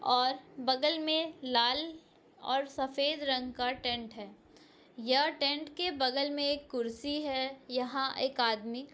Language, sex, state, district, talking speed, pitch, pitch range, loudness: Hindi, female, Chhattisgarh, Raigarh, 140 wpm, 265 Hz, 250-290 Hz, -32 LUFS